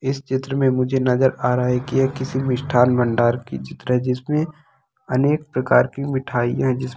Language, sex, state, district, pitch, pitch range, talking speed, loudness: Hindi, male, Bihar, Purnia, 130 Hz, 125-135 Hz, 190 wpm, -20 LUFS